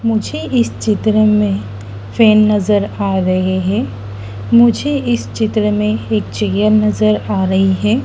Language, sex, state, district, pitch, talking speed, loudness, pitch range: Hindi, female, Madhya Pradesh, Dhar, 210 Hz, 140 wpm, -14 LUFS, 190-220 Hz